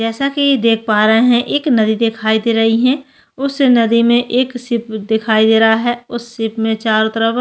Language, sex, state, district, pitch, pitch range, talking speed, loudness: Hindi, female, Chhattisgarh, Sukma, 230 Hz, 220-245 Hz, 220 wpm, -14 LUFS